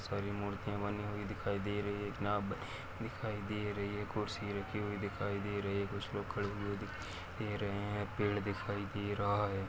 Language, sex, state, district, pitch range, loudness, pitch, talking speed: Hindi, male, Maharashtra, Dhule, 100-105 Hz, -39 LUFS, 100 Hz, 210 wpm